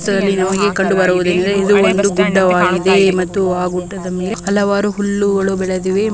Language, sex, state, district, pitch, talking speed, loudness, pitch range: Kannada, female, Karnataka, Dharwad, 195 Hz, 135 wpm, -14 LUFS, 185-200 Hz